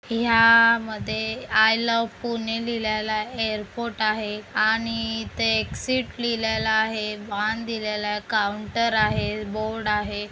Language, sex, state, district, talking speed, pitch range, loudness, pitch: Marathi, female, Maharashtra, Pune, 120 wpm, 215-230 Hz, -23 LUFS, 220 Hz